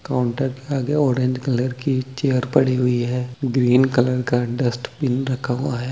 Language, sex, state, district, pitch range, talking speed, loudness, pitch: Hindi, male, Chhattisgarh, Bilaspur, 125-135 Hz, 180 wpm, -21 LUFS, 130 Hz